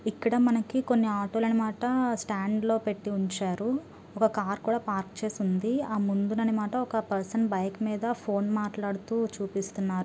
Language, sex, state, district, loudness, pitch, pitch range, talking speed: Telugu, female, Andhra Pradesh, Guntur, -29 LUFS, 215 Hz, 200-225 Hz, 150 wpm